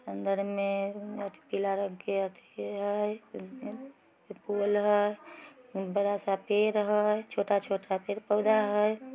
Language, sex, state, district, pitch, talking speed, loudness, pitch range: Magahi, female, Bihar, Samastipur, 205 Hz, 120 wpm, -30 LUFS, 195-210 Hz